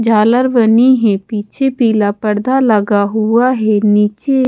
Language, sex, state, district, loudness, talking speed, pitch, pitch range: Hindi, female, Haryana, Charkhi Dadri, -12 LUFS, 135 wpm, 220 Hz, 210-250 Hz